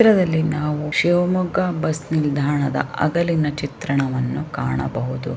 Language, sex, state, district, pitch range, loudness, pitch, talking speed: Kannada, female, Karnataka, Shimoga, 140-170 Hz, -21 LUFS, 150 Hz, 100 wpm